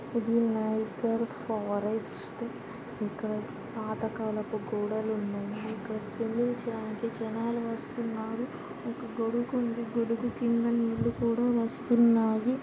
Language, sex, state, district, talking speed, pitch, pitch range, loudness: Telugu, female, Andhra Pradesh, Guntur, 95 wpm, 230 Hz, 220-235 Hz, -31 LUFS